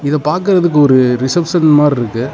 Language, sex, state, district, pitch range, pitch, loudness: Tamil, male, Tamil Nadu, Namakkal, 130-170 Hz, 150 Hz, -12 LUFS